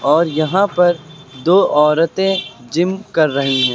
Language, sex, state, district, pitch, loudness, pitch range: Hindi, male, Uttar Pradesh, Lucknow, 160 Hz, -15 LUFS, 150-185 Hz